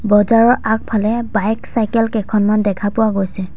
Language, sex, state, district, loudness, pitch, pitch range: Assamese, female, Assam, Sonitpur, -16 LUFS, 220 Hz, 205-225 Hz